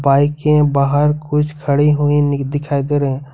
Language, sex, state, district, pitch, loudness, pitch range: Hindi, male, Jharkhand, Ranchi, 145 Hz, -15 LUFS, 140-150 Hz